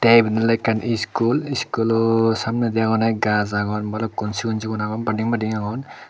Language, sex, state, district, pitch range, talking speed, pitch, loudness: Chakma, male, Tripura, Dhalai, 110-115 Hz, 165 wpm, 115 Hz, -21 LUFS